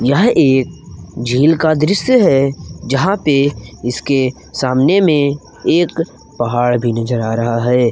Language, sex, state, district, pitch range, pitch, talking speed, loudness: Hindi, male, Jharkhand, Garhwa, 120-155 Hz, 135 Hz, 135 wpm, -14 LUFS